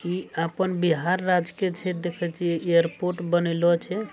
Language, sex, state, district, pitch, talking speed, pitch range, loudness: Angika, male, Bihar, Araria, 175 Hz, 160 wpm, 170-185 Hz, -25 LUFS